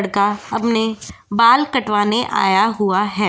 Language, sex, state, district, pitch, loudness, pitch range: Hindi, female, Goa, North and South Goa, 210 Hz, -17 LUFS, 200-230 Hz